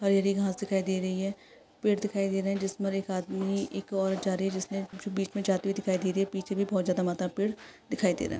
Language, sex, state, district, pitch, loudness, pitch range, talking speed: Hindi, female, Maharashtra, Solapur, 195 Hz, -30 LUFS, 190-195 Hz, 290 wpm